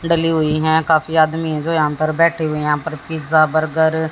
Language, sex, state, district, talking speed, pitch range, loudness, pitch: Hindi, female, Haryana, Jhajjar, 220 wpm, 155-160 Hz, -16 LUFS, 160 Hz